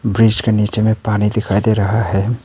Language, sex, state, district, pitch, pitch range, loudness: Hindi, male, Arunachal Pradesh, Papum Pare, 110 Hz, 105-110 Hz, -15 LUFS